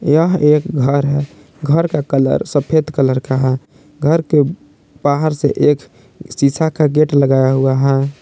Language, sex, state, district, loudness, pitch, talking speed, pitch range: Hindi, male, Jharkhand, Palamu, -15 LUFS, 145 Hz, 160 wpm, 135-155 Hz